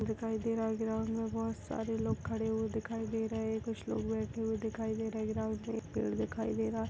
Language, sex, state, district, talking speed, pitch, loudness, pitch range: Hindi, female, Chhattisgarh, Balrampur, 260 wpm, 220 Hz, -36 LUFS, 180-225 Hz